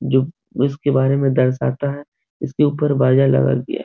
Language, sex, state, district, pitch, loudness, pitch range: Hindi, male, Bihar, Supaul, 135 Hz, -18 LUFS, 130-145 Hz